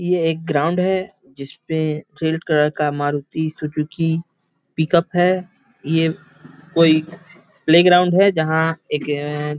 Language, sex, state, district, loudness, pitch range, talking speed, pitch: Hindi, male, Bihar, East Champaran, -19 LUFS, 150-175 Hz, 125 wpm, 160 Hz